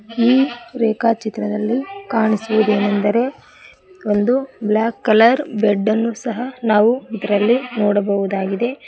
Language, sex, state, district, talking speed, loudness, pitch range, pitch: Kannada, female, Karnataka, Koppal, 90 wpm, -18 LUFS, 210-245 Hz, 225 Hz